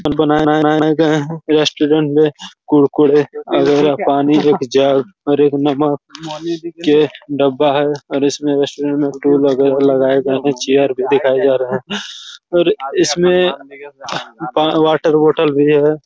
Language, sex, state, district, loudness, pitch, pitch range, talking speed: Hindi, male, Chhattisgarh, Raigarh, -14 LUFS, 145 Hz, 140-155 Hz, 125 wpm